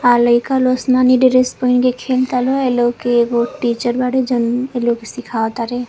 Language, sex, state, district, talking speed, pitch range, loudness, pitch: Bhojpuri, female, Uttar Pradesh, Varanasi, 215 wpm, 240-255 Hz, -16 LUFS, 245 Hz